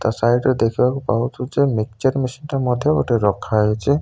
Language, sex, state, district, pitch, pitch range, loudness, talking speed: Odia, male, Odisha, Malkangiri, 125 Hz, 115-135 Hz, -19 LUFS, 135 wpm